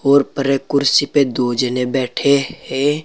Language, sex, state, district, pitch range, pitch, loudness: Hindi, male, Uttar Pradesh, Saharanpur, 130-140 Hz, 140 Hz, -17 LUFS